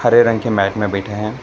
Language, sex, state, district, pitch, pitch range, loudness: Hindi, male, Karnataka, Bangalore, 105 Hz, 100-115 Hz, -17 LUFS